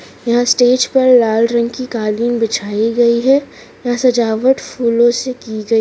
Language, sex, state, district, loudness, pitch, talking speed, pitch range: Hindi, female, Rajasthan, Churu, -14 LUFS, 235 Hz, 175 wpm, 225-255 Hz